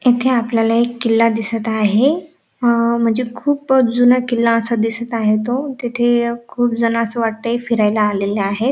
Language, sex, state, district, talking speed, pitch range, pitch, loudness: Marathi, female, Maharashtra, Dhule, 165 wpm, 225-245 Hz, 235 Hz, -16 LUFS